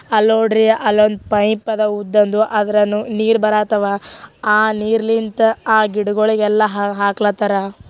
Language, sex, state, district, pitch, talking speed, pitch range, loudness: Kannada, female, Karnataka, Gulbarga, 215 Hz, 105 wpm, 210-220 Hz, -16 LUFS